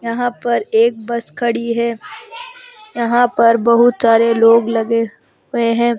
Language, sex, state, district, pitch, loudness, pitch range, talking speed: Hindi, female, Rajasthan, Jaipur, 235 Hz, -15 LUFS, 230-240 Hz, 140 wpm